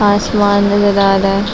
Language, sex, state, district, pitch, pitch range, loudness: Hindi, female, Chhattisgarh, Balrampur, 200 Hz, 195-205 Hz, -12 LUFS